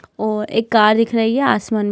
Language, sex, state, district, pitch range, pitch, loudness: Hindi, female, Bihar, Gopalganj, 210-230 Hz, 220 Hz, -16 LUFS